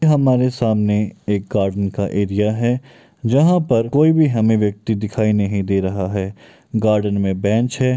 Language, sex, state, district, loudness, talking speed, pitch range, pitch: Maithili, male, Bihar, Muzaffarpur, -18 LUFS, 165 wpm, 100-125 Hz, 105 Hz